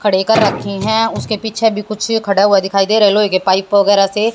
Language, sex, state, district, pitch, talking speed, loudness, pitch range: Hindi, female, Haryana, Jhajjar, 210 Hz, 260 wpm, -14 LUFS, 195-220 Hz